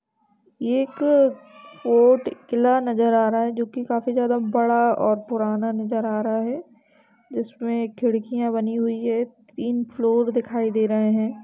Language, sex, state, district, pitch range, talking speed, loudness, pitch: Hindi, female, Uttar Pradesh, Jalaun, 225-245 Hz, 170 wpm, -22 LUFS, 235 Hz